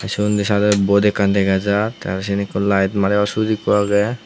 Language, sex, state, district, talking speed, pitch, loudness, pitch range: Chakma, male, Tripura, Unakoti, 210 wpm, 100 Hz, -17 LUFS, 100-105 Hz